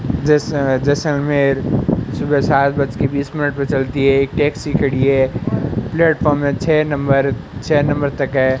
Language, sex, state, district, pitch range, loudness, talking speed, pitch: Hindi, male, Rajasthan, Bikaner, 135-145 Hz, -16 LUFS, 160 wpm, 140 Hz